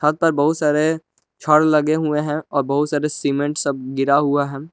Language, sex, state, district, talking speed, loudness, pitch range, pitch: Hindi, male, Jharkhand, Palamu, 205 wpm, -19 LUFS, 140-155 Hz, 150 Hz